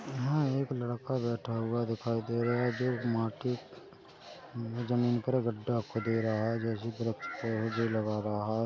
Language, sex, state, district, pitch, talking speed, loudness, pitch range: Hindi, male, Chhattisgarh, Rajnandgaon, 115 Hz, 160 wpm, -33 LUFS, 115-125 Hz